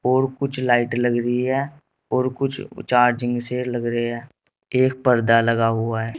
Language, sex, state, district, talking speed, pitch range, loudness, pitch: Hindi, male, Uttar Pradesh, Saharanpur, 175 wpm, 120-130 Hz, -19 LUFS, 125 Hz